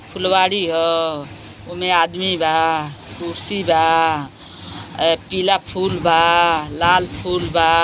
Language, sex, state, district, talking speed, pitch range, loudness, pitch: Bhojpuri, female, Uttar Pradesh, Gorakhpur, 90 wpm, 160-180 Hz, -17 LUFS, 165 Hz